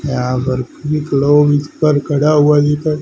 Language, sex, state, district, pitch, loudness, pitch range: Hindi, male, Haryana, Charkhi Dadri, 145 Hz, -14 LUFS, 140-150 Hz